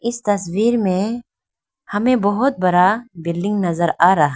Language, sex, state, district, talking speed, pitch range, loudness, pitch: Hindi, female, Arunachal Pradesh, Lower Dibang Valley, 135 wpm, 180-230 Hz, -18 LUFS, 200 Hz